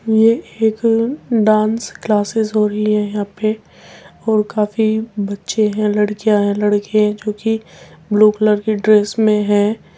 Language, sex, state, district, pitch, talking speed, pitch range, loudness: Hindi, female, Uttar Pradesh, Muzaffarnagar, 215 Hz, 150 wpm, 210-220 Hz, -16 LUFS